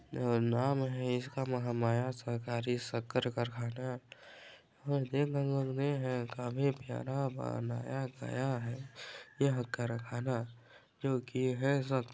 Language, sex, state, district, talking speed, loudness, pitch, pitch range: Hindi, male, Chhattisgarh, Balrampur, 100 wpm, -36 LUFS, 125 Hz, 120-135 Hz